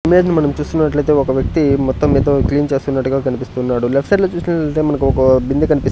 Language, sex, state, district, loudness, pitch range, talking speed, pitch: Telugu, male, Andhra Pradesh, Sri Satya Sai, -15 LUFS, 130-155 Hz, 190 wpm, 140 Hz